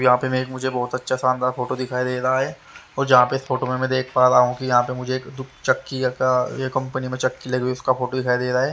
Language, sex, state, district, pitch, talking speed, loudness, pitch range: Hindi, male, Haryana, Rohtak, 130 Hz, 290 wpm, -21 LUFS, 125-130 Hz